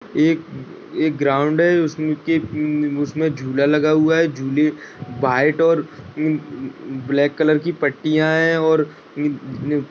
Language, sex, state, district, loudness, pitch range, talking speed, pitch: Hindi, male, Uttar Pradesh, Gorakhpur, -19 LUFS, 145-160 Hz, 135 wpm, 150 Hz